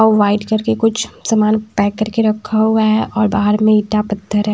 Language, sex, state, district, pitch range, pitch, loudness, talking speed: Hindi, female, Haryana, Charkhi Dadri, 210-220 Hz, 215 Hz, -15 LUFS, 210 wpm